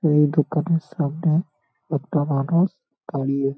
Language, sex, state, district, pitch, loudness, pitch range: Bengali, male, West Bengal, Paschim Medinipur, 150 Hz, -22 LUFS, 140-160 Hz